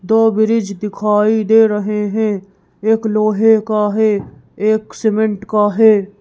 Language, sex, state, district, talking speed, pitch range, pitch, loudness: Hindi, female, Madhya Pradesh, Bhopal, 135 wpm, 205-220 Hz, 215 Hz, -15 LUFS